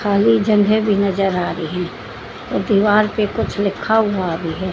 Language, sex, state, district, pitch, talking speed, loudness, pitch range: Hindi, female, Haryana, Charkhi Dadri, 200 Hz, 165 wpm, -17 LUFS, 180-210 Hz